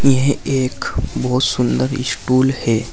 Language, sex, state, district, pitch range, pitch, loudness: Hindi, male, Uttar Pradesh, Saharanpur, 115-135 Hz, 130 Hz, -18 LUFS